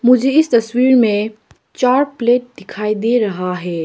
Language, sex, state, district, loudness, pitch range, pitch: Hindi, female, Arunachal Pradesh, Papum Pare, -15 LUFS, 210-250 Hz, 235 Hz